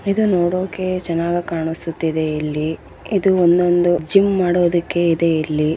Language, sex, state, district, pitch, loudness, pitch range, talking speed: Kannada, female, Karnataka, Bellary, 175 Hz, -18 LUFS, 160-185 Hz, 125 wpm